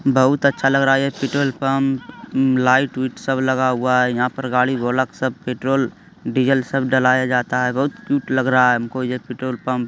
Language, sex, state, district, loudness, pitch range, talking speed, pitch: Hindi, male, Bihar, Lakhisarai, -19 LUFS, 125-135 Hz, 230 wpm, 130 Hz